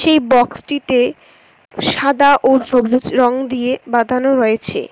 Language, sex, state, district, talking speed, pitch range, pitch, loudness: Bengali, female, West Bengal, Cooch Behar, 110 wpm, 245-270 Hz, 255 Hz, -14 LUFS